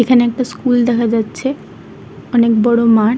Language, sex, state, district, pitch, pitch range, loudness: Bengali, male, West Bengal, Kolkata, 235 Hz, 230-245 Hz, -14 LUFS